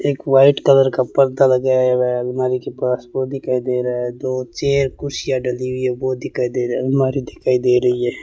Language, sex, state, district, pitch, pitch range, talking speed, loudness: Hindi, male, Rajasthan, Bikaner, 130 Hz, 125-135 Hz, 225 wpm, -18 LUFS